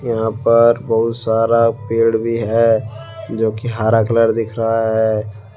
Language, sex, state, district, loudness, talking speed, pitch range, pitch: Hindi, male, Jharkhand, Deoghar, -16 LUFS, 150 wpm, 110-115 Hz, 115 Hz